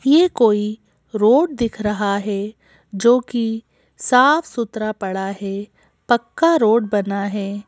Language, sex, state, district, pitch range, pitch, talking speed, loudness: Hindi, female, Madhya Pradesh, Bhopal, 205-240 Hz, 220 Hz, 125 wpm, -18 LUFS